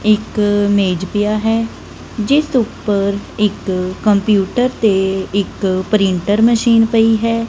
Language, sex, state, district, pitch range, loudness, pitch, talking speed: Punjabi, female, Punjab, Kapurthala, 195-225 Hz, -15 LUFS, 210 Hz, 110 wpm